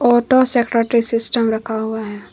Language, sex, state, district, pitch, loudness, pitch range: Hindi, female, Jharkhand, Garhwa, 230 Hz, -17 LUFS, 220-240 Hz